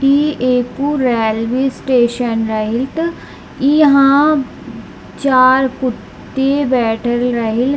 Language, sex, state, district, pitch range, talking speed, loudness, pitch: Hindi, female, Bihar, East Champaran, 240-280 Hz, 90 wpm, -14 LUFS, 255 Hz